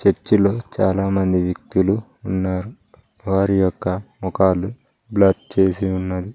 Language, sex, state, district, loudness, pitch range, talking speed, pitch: Telugu, male, Telangana, Mahabubabad, -20 LUFS, 95-105 Hz, 115 wpm, 95 Hz